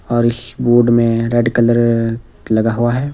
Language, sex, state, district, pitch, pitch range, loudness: Hindi, male, Himachal Pradesh, Shimla, 120 Hz, 115-120 Hz, -15 LUFS